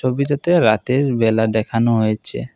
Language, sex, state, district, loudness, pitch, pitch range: Bengali, male, Assam, Kamrup Metropolitan, -17 LUFS, 115 Hz, 110-135 Hz